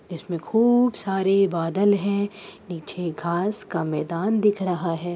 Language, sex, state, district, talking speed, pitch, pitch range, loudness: Hindi, female, Uttar Pradesh, Jyotiba Phule Nagar, 140 wpm, 190 Hz, 170-205 Hz, -23 LUFS